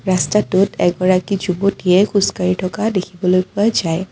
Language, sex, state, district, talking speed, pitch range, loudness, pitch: Assamese, female, Assam, Kamrup Metropolitan, 130 wpm, 180-200 Hz, -16 LUFS, 185 Hz